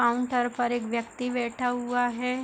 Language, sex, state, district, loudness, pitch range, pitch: Hindi, female, Uttar Pradesh, Hamirpur, -28 LUFS, 240-250 Hz, 245 Hz